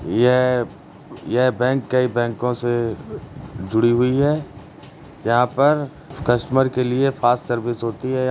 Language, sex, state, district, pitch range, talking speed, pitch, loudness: Hindi, male, Uttar Pradesh, Jalaun, 120-135 Hz, 130 wpm, 125 Hz, -20 LUFS